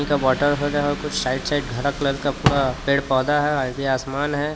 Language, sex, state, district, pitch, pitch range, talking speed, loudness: Hindi, male, Jharkhand, Palamu, 140 Hz, 135-145 Hz, 145 wpm, -21 LUFS